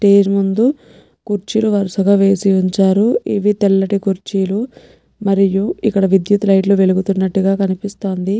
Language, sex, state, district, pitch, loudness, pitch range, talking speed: Telugu, female, Telangana, Nalgonda, 195 Hz, -15 LUFS, 195-205 Hz, 105 wpm